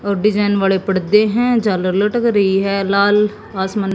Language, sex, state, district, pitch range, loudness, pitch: Hindi, female, Haryana, Jhajjar, 195-210 Hz, -16 LUFS, 200 Hz